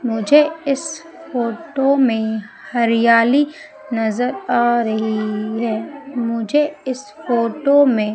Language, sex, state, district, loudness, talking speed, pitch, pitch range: Hindi, female, Madhya Pradesh, Umaria, -18 LUFS, 95 wpm, 245 Hz, 225-290 Hz